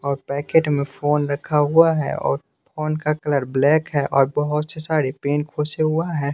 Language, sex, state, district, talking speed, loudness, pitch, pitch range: Hindi, male, Bihar, West Champaran, 200 wpm, -20 LUFS, 150 Hz, 140-155 Hz